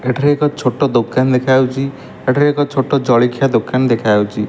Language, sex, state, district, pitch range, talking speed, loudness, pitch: Odia, male, Odisha, Malkangiri, 120-140 Hz, 145 wpm, -15 LUFS, 130 Hz